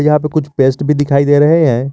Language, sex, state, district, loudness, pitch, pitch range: Hindi, male, Jharkhand, Garhwa, -12 LUFS, 145 Hz, 140-150 Hz